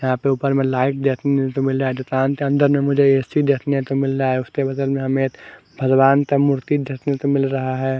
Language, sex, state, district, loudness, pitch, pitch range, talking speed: Hindi, male, Haryana, Charkhi Dadri, -19 LUFS, 135 Hz, 130-140 Hz, 240 wpm